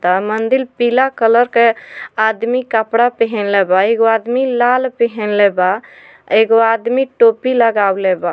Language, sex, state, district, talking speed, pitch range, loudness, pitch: Bhojpuri, female, Bihar, Muzaffarpur, 135 wpm, 210-245 Hz, -14 LUFS, 225 Hz